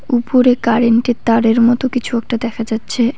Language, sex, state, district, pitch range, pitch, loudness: Bengali, female, West Bengal, Cooch Behar, 230-245 Hz, 235 Hz, -14 LUFS